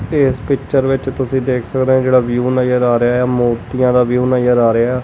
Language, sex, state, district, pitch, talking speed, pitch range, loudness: Punjabi, male, Punjab, Kapurthala, 125 Hz, 240 wpm, 120-130 Hz, -14 LUFS